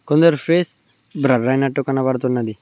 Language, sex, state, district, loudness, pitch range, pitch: Telugu, male, Telangana, Mahabubabad, -18 LUFS, 125-145 Hz, 135 Hz